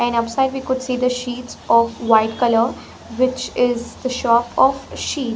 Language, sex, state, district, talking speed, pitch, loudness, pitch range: English, female, Punjab, Pathankot, 180 wpm, 245 Hz, -19 LUFS, 235-255 Hz